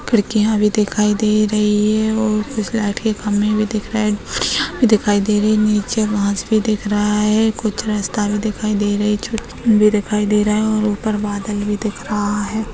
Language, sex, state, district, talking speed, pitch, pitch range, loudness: Hindi, female, Bihar, Madhepura, 220 wpm, 210 Hz, 210-215 Hz, -17 LUFS